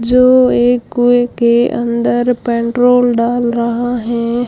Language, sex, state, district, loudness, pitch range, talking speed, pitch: Hindi, female, Rajasthan, Jaisalmer, -13 LUFS, 235-245 Hz, 120 wpm, 240 Hz